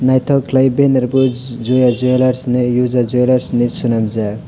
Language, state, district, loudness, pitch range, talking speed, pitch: Kokborok, Tripura, West Tripura, -14 LUFS, 120-130 Hz, 145 wpm, 125 Hz